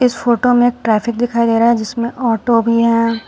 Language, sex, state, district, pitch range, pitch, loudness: Hindi, female, Uttar Pradesh, Shamli, 230-240 Hz, 235 Hz, -14 LUFS